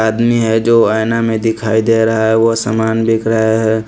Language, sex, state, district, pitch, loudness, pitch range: Hindi, male, Punjab, Pathankot, 110 Hz, -13 LUFS, 110-115 Hz